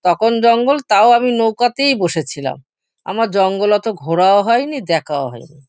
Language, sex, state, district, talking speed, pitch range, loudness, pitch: Bengali, female, West Bengal, Kolkata, 145 wpm, 165-235 Hz, -15 LUFS, 205 Hz